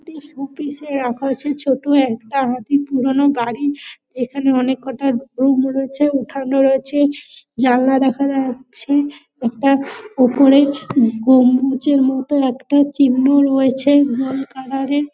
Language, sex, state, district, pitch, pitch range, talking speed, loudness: Bengali, female, West Bengal, Dakshin Dinajpur, 270 Hz, 260-285 Hz, 125 wpm, -16 LUFS